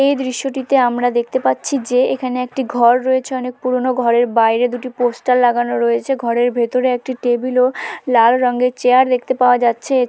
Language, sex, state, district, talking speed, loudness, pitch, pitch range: Bengali, female, West Bengal, Dakshin Dinajpur, 180 wpm, -16 LUFS, 250 Hz, 240-255 Hz